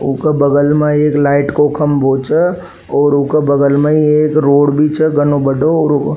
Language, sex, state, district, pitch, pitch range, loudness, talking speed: Rajasthani, male, Rajasthan, Nagaur, 145 Hz, 140-150 Hz, -12 LUFS, 225 wpm